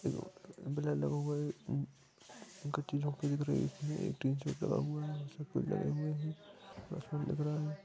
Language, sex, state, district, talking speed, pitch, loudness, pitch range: Hindi, male, Jharkhand, Sahebganj, 185 wpm, 150 Hz, -38 LUFS, 145-160 Hz